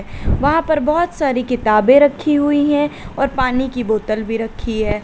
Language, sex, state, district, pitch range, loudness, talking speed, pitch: Hindi, female, Uttar Pradesh, Lalitpur, 225-290 Hz, -16 LUFS, 180 wpm, 265 Hz